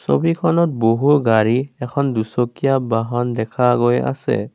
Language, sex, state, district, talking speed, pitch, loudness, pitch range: Assamese, male, Assam, Kamrup Metropolitan, 120 wpm, 120 Hz, -18 LUFS, 115-135 Hz